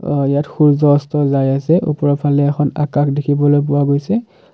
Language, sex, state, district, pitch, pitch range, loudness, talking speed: Assamese, male, Assam, Kamrup Metropolitan, 145 Hz, 145-150 Hz, -15 LUFS, 160 wpm